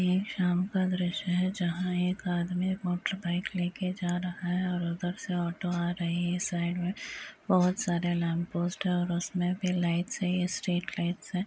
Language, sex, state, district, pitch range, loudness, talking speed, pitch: Hindi, female, Bihar, Muzaffarpur, 175-185 Hz, -31 LUFS, 165 wpm, 180 Hz